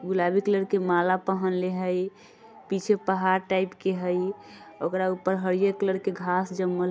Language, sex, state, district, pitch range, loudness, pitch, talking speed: Bajjika, female, Bihar, Vaishali, 185-190 Hz, -26 LUFS, 185 Hz, 165 wpm